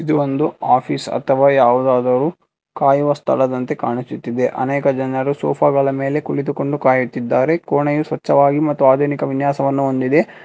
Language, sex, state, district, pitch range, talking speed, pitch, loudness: Kannada, male, Karnataka, Bangalore, 130-145 Hz, 115 wpm, 140 Hz, -17 LUFS